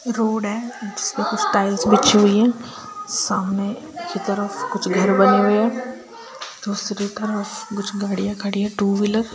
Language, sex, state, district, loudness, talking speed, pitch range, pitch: Hindi, female, Bihar, Sitamarhi, -20 LUFS, 95 wpm, 205-240 Hz, 210 Hz